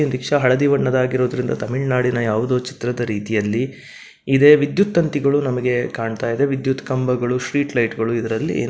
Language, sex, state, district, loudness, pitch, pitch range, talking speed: Kannada, male, Karnataka, Dakshina Kannada, -19 LUFS, 125 Hz, 120-140 Hz, 140 wpm